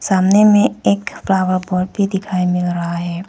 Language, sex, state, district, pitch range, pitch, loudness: Hindi, female, Arunachal Pradesh, Papum Pare, 175-195 Hz, 185 Hz, -16 LUFS